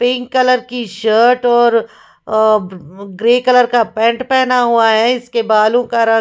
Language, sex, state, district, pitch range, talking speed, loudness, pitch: Hindi, female, Punjab, Fazilka, 220-245 Hz, 185 wpm, -13 LUFS, 235 Hz